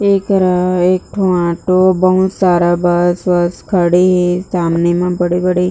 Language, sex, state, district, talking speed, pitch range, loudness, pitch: Chhattisgarhi, female, Chhattisgarh, Jashpur, 135 wpm, 175-185 Hz, -13 LUFS, 180 Hz